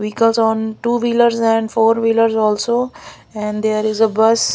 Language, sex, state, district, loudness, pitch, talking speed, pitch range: English, female, Maharashtra, Gondia, -16 LUFS, 225 Hz, 170 wpm, 220-230 Hz